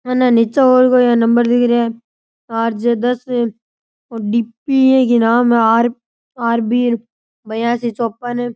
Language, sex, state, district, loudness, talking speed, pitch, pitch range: Rajasthani, male, Rajasthan, Churu, -15 LUFS, 135 wpm, 235 Hz, 230-245 Hz